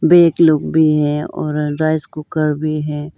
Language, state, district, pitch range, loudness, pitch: Hindi, Arunachal Pradesh, Lower Dibang Valley, 150-160 Hz, -16 LUFS, 155 Hz